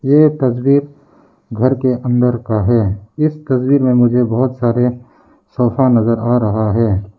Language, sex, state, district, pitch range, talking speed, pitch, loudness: Hindi, male, Arunachal Pradesh, Lower Dibang Valley, 115-130 Hz, 140 wpm, 125 Hz, -14 LUFS